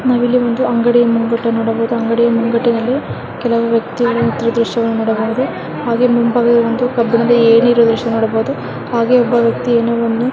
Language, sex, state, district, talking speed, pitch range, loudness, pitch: Kannada, female, Karnataka, Bijapur, 145 wpm, 230-240 Hz, -14 LUFS, 235 Hz